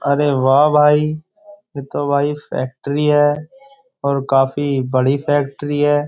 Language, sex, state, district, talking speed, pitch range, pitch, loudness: Hindi, male, Uttar Pradesh, Jyotiba Phule Nagar, 130 wpm, 140-150 Hz, 145 Hz, -17 LUFS